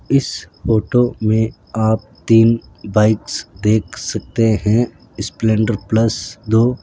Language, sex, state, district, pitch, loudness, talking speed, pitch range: Hindi, male, Rajasthan, Jaipur, 110 Hz, -17 LUFS, 115 wpm, 110-115 Hz